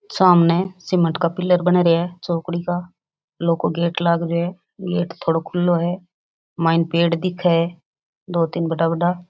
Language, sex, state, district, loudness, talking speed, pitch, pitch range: Rajasthani, female, Rajasthan, Nagaur, -20 LUFS, 175 wpm, 170 Hz, 165-180 Hz